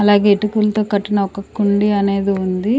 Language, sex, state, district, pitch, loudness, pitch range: Telugu, female, Andhra Pradesh, Sri Satya Sai, 205 Hz, -16 LUFS, 200-210 Hz